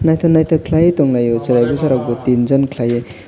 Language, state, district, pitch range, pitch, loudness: Kokborok, Tripura, West Tripura, 120-160 Hz, 130 Hz, -14 LUFS